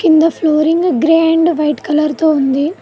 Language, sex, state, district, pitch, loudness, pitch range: Telugu, female, Telangana, Mahabubabad, 315 Hz, -13 LUFS, 300-325 Hz